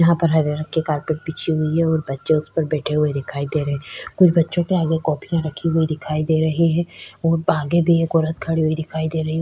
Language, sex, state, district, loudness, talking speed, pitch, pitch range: Hindi, female, Chhattisgarh, Sukma, -20 LUFS, 265 wpm, 160 Hz, 155-165 Hz